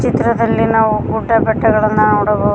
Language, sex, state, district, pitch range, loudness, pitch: Kannada, female, Karnataka, Koppal, 215-225 Hz, -13 LUFS, 220 Hz